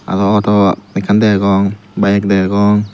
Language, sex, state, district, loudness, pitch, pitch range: Chakma, male, Tripura, Dhalai, -13 LUFS, 100 Hz, 100-105 Hz